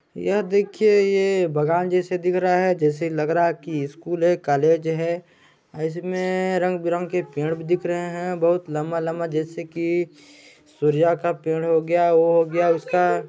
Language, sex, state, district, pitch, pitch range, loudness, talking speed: Chhattisgarhi, male, Chhattisgarh, Balrampur, 170 Hz, 165-180 Hz, -22 LUFS, 175 wpm